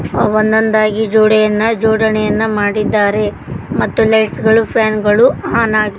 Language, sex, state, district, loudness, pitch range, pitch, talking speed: Kannada, female, Karnataka, Koppal, -13 LUFS, 215-220 Hz, 215 Hz, 130 wpm